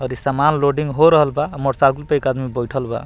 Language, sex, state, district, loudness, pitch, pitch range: Bhojpuri, male, Bihar, Muzaffarpur, -17 LUFS, 140 Hz, 130-150 Hz